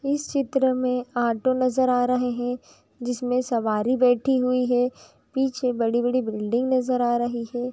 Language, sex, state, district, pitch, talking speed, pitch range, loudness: Hindi, female, Bihar, Araria, 250 Hz, 165 wpm, 240-255 Hz, -23 LUFS